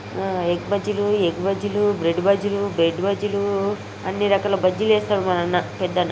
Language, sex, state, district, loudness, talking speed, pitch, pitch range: Telugu, female, Telangana, Karimnagar, -21 LUFS, 165 wpm, 200 Hz, 180-205 Hz